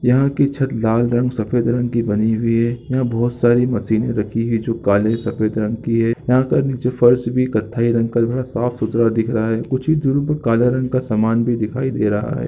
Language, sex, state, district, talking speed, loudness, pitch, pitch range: Hindi, male, Chhattisgarh, Raigarh, 235 wpm, -18 LUFS, 120 Hz, 115-125 Hz